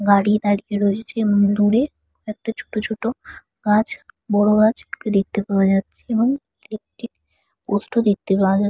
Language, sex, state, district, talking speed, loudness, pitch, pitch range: Bengali, female, West Bengal, Purulia, 130 wpm, -20 LUFS, 210 Hz, 200-225 Hz